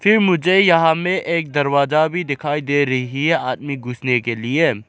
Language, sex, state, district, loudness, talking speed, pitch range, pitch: Hindi, male, Arunachal Pradesh, Lower Dibang Valley, -18 LUFS, 195 wpm, 130-165 Hz, 145 Hz